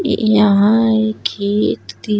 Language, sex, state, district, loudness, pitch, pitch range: Bhojpuri, female, Uttar Pradesh, Gorakhpur, -15 LUFS, 210 Hz, 200-215 Hz